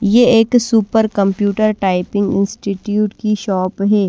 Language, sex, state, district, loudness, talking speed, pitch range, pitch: Hindi, female, Maharashtra, Washim, -15 LUFS, 130 wpm, 200-220 Hz, 205 Hz